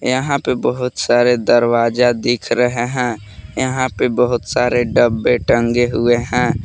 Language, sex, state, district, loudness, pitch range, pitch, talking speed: Hindi, male, Jharkhand, Palamu, -16 LUFS, 120-125 Hz, 120 Hz, 145 wpm